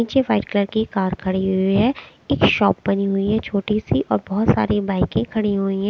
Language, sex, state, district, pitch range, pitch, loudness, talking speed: Hindi, female, Chandigarh, Chandigarh, 195-215 Hz, 200 Hz, -20 LUFS, 235 wpm